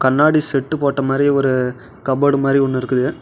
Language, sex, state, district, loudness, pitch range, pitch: Tamil, male, Tamil Nadu, Namakkal, -17 LUFS, 130-140 Hz, 135 Hz